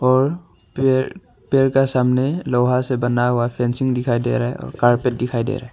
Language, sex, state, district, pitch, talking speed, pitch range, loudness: Hindi, male, Arunachal Pradesh, Longding, 125 Hz, 210 wpm, 120-130 Hz, -19 LUFS